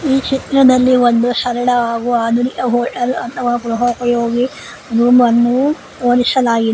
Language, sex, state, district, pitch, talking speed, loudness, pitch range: Kannada, female, Karnataka, Koppal, 245 Hz, 105 wpm, -14 LUFS, 240-255 Hz